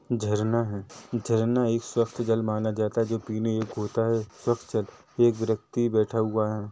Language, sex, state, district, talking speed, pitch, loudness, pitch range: Hindi, male, Chhattisgarh, Rajnandgaon, 185 wpm, 115 Hz, -27 LUFS, 110-115 Hz